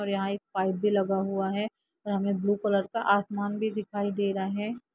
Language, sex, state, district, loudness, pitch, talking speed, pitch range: Hindi, female, Jharkhand, Jamtara, -29 LUFS, 200 Hz, 230 wpm, 195-205 Hz